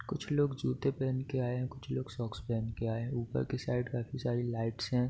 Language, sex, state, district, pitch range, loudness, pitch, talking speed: Hindi, male, Bihar, Darbhanga, 115-130 Hz, -35 LUFS, 125 Hz, 270 wpm